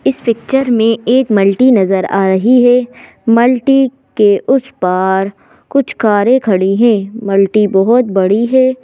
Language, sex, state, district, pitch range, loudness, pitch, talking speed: Hindi, female, Madhya Pradesh, Bhopal, 195-250 Hz, -11 LUFS, 230 Hz, 145 wpm